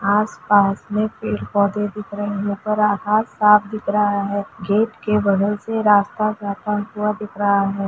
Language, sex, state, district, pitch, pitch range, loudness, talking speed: Hindi, female, Chhattisgarh, Sukma, 205 Hz, 200-210 Hz, -19 LUFS, 165 wpm